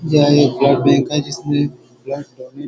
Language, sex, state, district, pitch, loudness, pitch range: Hindi, male, Chhattisgarh, Bilaspur, 145 Hz, -15 LUFS, 140-145 Hz